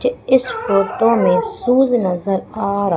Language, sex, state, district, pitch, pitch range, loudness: Hindi, female, Madhya Pradesh, Umaria, 230 Hz, 195-260 Hz, -16 LUFS